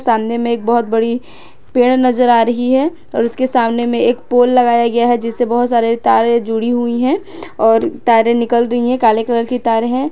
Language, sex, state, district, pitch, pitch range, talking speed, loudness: Hindi, female, Jharkhand, Garhwa, 240 Hz, 230-245 Hz, 215 wpm, -14 LUFS